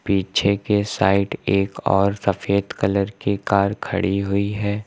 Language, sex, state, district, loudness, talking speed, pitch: Hindi, male, Uttar Pradesh, Lucknow, -21 LUFS, 150 wpm, 100 Hz